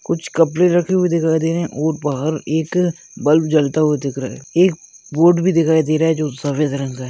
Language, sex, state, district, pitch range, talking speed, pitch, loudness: Hindi, male, Chhattisgarh, Balrampur, 150-170 Hz, 230 wpm, 160 Hz, -17 LUFS